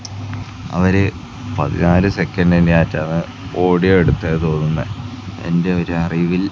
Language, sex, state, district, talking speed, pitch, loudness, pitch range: Malayalam, male, Kerala, Kasaragod, 100 wpm, 90 Hz, -17 LUFS, 85-100 Hz